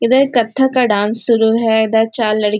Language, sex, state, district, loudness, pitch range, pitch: Hindi, female, Maharashtra, Nagpur, -13 LUFS, 220-245 Hz, 225 Hz